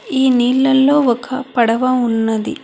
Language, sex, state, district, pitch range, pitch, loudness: Telugu, female, Telangana, Hyderabad, 235-265 Hz, 255 Hz, -15 LUFS